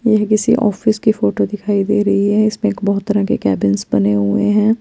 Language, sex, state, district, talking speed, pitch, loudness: Hindi, female, Chandigarh, Chandigarh, 200 wpm, 205 Hz, -15 LUFS